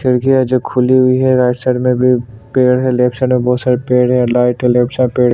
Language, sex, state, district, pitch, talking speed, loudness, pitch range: Hindi, male, Chhattisgarh, Sukma, 125 Hz, 270 wpm, -13 LUFS, 125-130 Hz